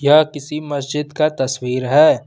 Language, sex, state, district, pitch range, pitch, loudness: Hindi, male, Jharkhand, Ranchi, 135-150 Hz, 145 Hz, -18 LUFS